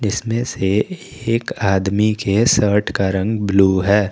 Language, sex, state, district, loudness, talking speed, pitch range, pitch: Hindi, male, Jharkhand, Garhwa, -17 LUFS, 145 wpm, 100-115 Hz, 105 Hz